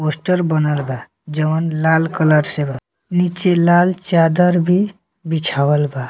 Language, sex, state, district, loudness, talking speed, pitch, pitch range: Bhojpuri, male, Bihar, Muzaffarpur, -16 LUFS, 140 wpm, 160 Hz, 150-180 Hz